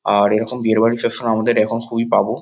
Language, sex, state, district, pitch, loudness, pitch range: Bengali, male, West Bengal, North 24 Parganas, 115 Hz, -17 LUFS, 110-115 Hz